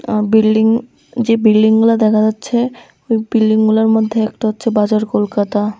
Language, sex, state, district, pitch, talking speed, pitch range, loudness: Bengali, female, Tripura, West Tripura, 220 Hz, 135 wpm, 215-230 Hz, -14 LUFS